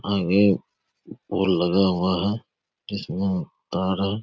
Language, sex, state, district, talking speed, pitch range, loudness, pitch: Hindi, male, Bihar, Saharsa, 140 wpm, 95-110 Hz, -23 LUFS, 100 Hz